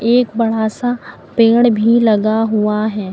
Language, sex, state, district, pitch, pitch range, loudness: Hindi, female, Uttar Pradesh, Lucknow, 225 Hz, 215-235 Hz, -14 LUFS